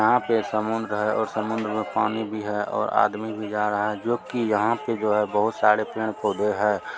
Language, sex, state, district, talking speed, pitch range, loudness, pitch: Hindi, male, Bihar, Supaul, 215 wpm, 105-110 Hz, -24 LUFS, 110 Hz